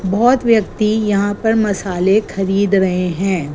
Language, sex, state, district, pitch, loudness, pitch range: Hindi, female, Gujarat, Gandhinagar, 200 Hz, -15 LUFS, 190-215 Hz